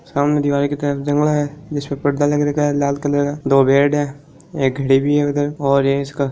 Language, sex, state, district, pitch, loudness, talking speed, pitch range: Marwari, male, Rajasthan, Nagaur, 145 Hz, -18 LUFS, 140 wpm, 140-145 Hz